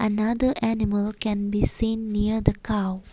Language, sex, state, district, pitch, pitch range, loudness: English, female, Assam, Kamrup Metropolitan, 215 Hz, 210-225 Hz, -24 LUFS